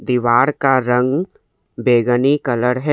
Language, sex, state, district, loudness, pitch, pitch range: Hindi, male, Assam, Kamrup Metropolitan, -16 LUFS, 125 Hz, 120-135 Hz